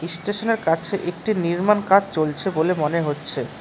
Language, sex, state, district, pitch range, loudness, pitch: Bengali, male, West Bengal, Cooch Behar, 165-200 Hz, -21 LUFS, 175 Hz